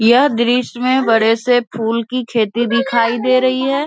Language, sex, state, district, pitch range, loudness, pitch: Hindi, female, Bihar, Vaishali, 230-255 Hz, -15 LUFS, 240 Hz